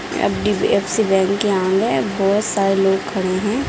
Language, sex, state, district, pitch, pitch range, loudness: Hindi, female, Bihar, Darbhanga, 195 Hz, 190-205 Hz, -18 LUFS